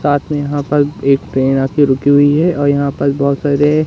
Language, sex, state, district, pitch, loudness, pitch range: Hindi, male, Madhya Pradesh, Katni, 145 Hz, -13 LUFS, 140-145 Hz